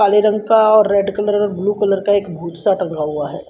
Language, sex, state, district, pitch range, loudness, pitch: Hindi, female, Haryana, Rohtak, 185-210 Hz, -16 LUFS, 205 Hz